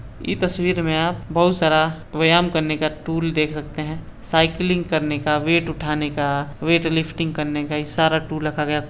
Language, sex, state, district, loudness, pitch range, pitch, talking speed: Hindi, male, Bihar, Muzaffarpur, -21 LUFS, 150-165 Hz, 160 Hz, 190 wpm